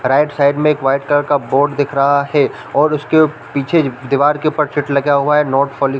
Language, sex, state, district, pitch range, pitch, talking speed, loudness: Hindi, male, Chhattisgarh, Bilaspur, 140-150 Hz, 145 Hz, 230 wpm, -15 LUFS